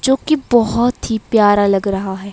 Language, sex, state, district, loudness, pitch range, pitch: Hindi, female, Himachal Pradesh, Shimla, -15 LUFS, 200-245 Hz, 220 Hz